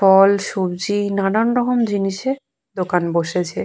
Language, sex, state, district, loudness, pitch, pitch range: Bengali, female, West Bengal, Purulia, -19 LUFS, 195 Hz, 185-220 Hz